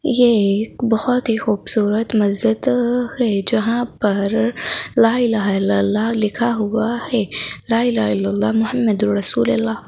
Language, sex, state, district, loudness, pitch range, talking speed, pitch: Hindi, female, Madhya Pradesh, Bhopal, -17 LUFS, 200-235 Hz, 120 wpm, 225 Hz